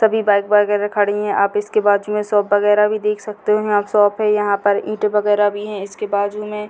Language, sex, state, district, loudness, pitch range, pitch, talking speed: Hindi, female, Bihar, Sitamarhi, -17 LUFS, 205-210 Hz, 210 Hz, 260 wpm